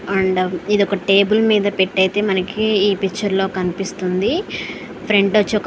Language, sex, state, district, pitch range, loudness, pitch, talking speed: Telugu, female, Andhra Pradesh, Srikakulam, 190-205 Hz, -17 LUFS, 195 Hz, 150 wpm